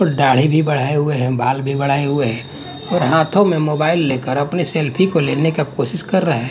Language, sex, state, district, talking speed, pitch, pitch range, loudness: Hindi, male, Punjab, Fazilka, 205 wpm, 145 Hz, 140-160 Hz, -17 LUFS